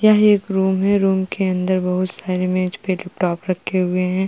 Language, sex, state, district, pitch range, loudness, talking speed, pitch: Hindi, female, Uttar Pradesh, Jalaun, 185-195 Hz, -19 LUFS, 210 wpm, 185 Hz